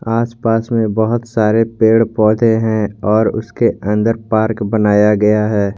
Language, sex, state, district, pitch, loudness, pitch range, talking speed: Hindi, male, Jharkhand, Garhwa, 110 Hz, -14 LUFS, 105-115 Hz, 155 wpm